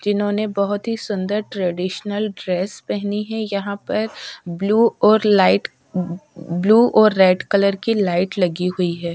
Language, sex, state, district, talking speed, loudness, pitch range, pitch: Hindi, female, Bihar, Patna, 145 wpm, -19 LUFS, 185-215 Hz, 200 Hz